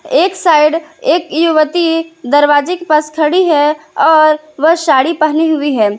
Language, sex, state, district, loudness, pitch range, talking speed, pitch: Hindi, female, Jharkhand, Palamu, -11 LUFS, 300-330 Hz, 150 wpm, 310 Hz